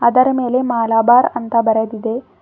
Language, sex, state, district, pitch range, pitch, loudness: Kannada, female, Karnataka, Bidar, 225-250 Hz, 235 Hz, -15 LUFS